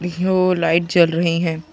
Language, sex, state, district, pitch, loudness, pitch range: Hindi, male, Chhattisgarh, Sukma, 170 Hz, -17 LUFS, 165-175 Hz